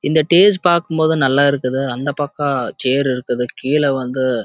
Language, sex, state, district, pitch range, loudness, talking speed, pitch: Tamil, male, Karnataka, Chamarajanagar, 130-155 Hz, -16 LUFS, 135 wpm, 140 Hz